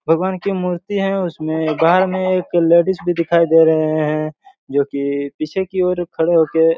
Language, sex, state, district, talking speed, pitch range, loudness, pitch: Hindi, male, Chhattisgarh, Raigarh, 185 wpm, 155-185 Hz, -17 LUFS, 170 Hz